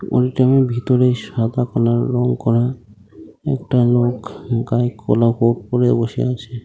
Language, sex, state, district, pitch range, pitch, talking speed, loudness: Bengali, male, West Bengal, North 24 Parganas, 115-125 Hz, 120 Hz, 135 wpm, -17 LUFS